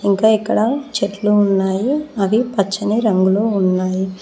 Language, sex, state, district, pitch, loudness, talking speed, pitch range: Telugu, female, Telangana, Mahabubabad, 205 Hz, -17 LUFS, 115 wpm, 195-220 Hz